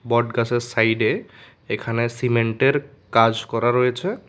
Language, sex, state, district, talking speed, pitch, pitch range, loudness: Bengali, male, Tripura, West Tripura, 110 wpm, 120 Hz, 115-125 Hz, -21 LUFS